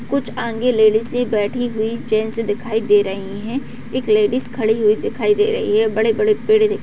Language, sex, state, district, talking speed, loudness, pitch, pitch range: Hindi, female, Bihar, Jahanabad, 195 wpm, -18 LUFS, 225 Hz, 215-250 Hz